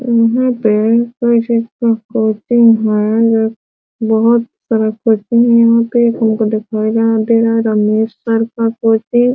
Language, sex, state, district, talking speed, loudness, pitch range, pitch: Hindi, female, Bihar, Sitamarhi, 65 wpm, -13 LUFS, 220-235 Hz, 225 Hz